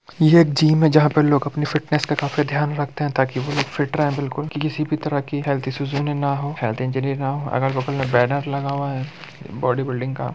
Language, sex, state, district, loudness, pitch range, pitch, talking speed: Hindi, male, Bihar, Muzaffarpur, -21 LUFS, 135-150 Hz, 145 Hz, 290 wpm